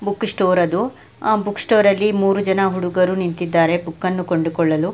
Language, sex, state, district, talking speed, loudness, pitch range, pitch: Kannada, female, Karnataka, Mysore, 180 wpm, -17 LUFS, 175-200 Hz, 185 Hz